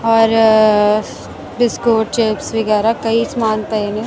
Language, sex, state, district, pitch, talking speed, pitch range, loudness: Punjabi, female, Punjab, Kapurthala, 220 Hz, 120 wpm, 215-225 Hz, -14 LUFS